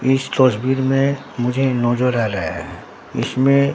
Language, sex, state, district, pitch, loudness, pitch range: Hindi, male, Bihar, Katihar, 130 Hz, -18 LUFS, 120-135 Hz